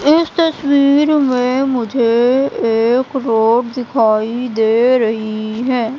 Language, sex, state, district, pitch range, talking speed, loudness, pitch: Hindi, female, Madhya Pradesh, Katni, 225-275 Hz, 100 wpm, -14 LUFS, 250 Hz